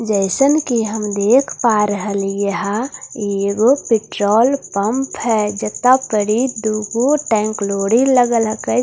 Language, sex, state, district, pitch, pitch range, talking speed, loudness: Hindi, female, Bihar, Katihar, 220 Hz, 205-245 Hz, 145 wpm, -16 LUFS